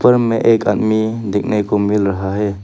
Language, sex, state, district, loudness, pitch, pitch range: Hindi, male, Arunachal Pradesh, Papum Pare, -16 LUFS, 105 Hz, 100-110 Hz